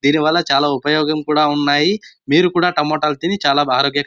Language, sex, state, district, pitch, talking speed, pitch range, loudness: Telugu, male, Andhra Pradesh, Anantapur, 150 Hz, 190 wpm, 145-160 Hz, -16 LUFS